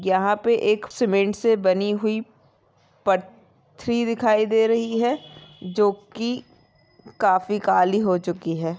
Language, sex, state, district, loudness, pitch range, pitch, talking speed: Hindi, female, Uttarakhand, Tehri Garhwal, -22 LUFS, 185-225 Hz, 210 Hz, 125 wpm